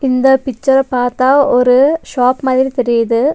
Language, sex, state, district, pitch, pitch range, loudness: Tamil, female, Tamil Nadu, Nilgiris, 260 Hz, 250-270 Hz, -12 LUFS